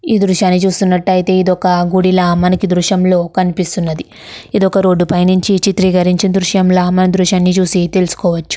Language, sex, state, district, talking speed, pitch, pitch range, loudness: Telugu, female, Andhra Pradesh, Krishna, 105 wpm, 185 Hz, 180-190 Hz, -12 LUFS